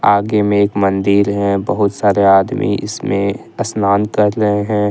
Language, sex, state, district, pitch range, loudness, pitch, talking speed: Hindi, male, Jharkhand, Deoghar, 100-105 Hz, -15 LUFS, 100 Hz, 160 wpm